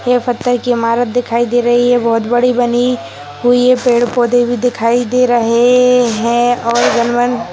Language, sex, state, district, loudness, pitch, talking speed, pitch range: Hindi, female, Uttar Pradesh, Hamirpur, -12 LUFS, 245 Hz, 165 wpm, 235-245 Hz